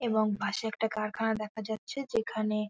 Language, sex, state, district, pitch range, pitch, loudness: Bengali, female, West Bengal, North 24 Parganas, 215-225 Hz, 220 Hz, -32 LUFS